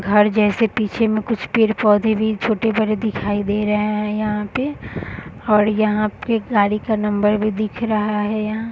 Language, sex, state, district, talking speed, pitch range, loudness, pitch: Hindi, female, Bihar, Darbhanga, 180 wpm, 210-220 Hz, -19 LUFS, 215 Hz